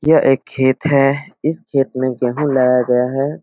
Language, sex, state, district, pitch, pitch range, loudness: Hindi, male, Bihar, Supaul, 135 Hz, 130-145 Hz, -16 LUFS